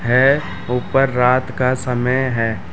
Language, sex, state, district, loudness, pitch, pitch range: Hindi, male, Bihar, Madhepura, -17 LUFS, 125 Hz, 120-130 Hz